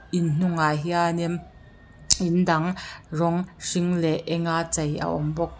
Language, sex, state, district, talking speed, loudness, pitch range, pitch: Mizo, female, Mizoram, Aizawl, 150 wpm, -24 LUFS, 155-175 Hz, 170 Hz